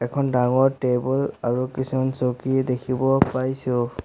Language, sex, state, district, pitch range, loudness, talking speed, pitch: Assamese, male, Assam, Sonitpur, 125-130 Hz, -22 LUFS, 120 wpm, 130 Hz